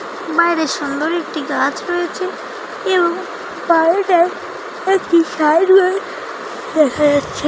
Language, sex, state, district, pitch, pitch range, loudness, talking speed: Bengali, female, West Bengal, Jalpaiguri, 340 Hz, 315-370 Hz, -16 LUFS, 90 wpm